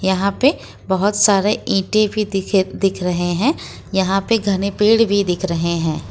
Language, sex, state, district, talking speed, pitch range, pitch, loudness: Hindi, female, Jharkhand, Ranchi, 175 wpm, 190-210 Hz, 195 Hz, -17 LUFS